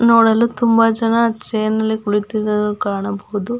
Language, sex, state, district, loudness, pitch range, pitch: Kannada, female, Karnataka, Belgaum, -17 LUFS, 210-230 Hz, 220 Hz